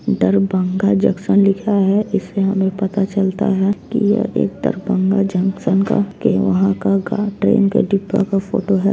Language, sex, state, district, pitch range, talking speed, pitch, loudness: Hindi, male, Bihar, Darbhanga, 190-200 Hz, 160 wpm, 195 Hz, -17 LUFS